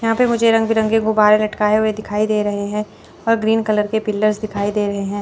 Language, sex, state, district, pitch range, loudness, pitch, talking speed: Hindi, female, Chandigarh, Chandigarh, 210-220 Hz, -17 LUFS, 215 Hz, 240 wpm